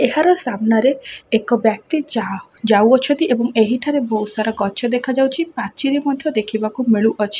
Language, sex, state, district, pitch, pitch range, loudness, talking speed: Odia, female, Odisha, Khordha, 240 Hz, 220-270 Hz, -18 LUFS, 155 wpm